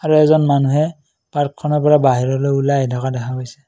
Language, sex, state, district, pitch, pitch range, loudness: Assamese, male, Assam, Kamrup Metropolitan, 140 Hz, 130-150 Hz, -16 LUFS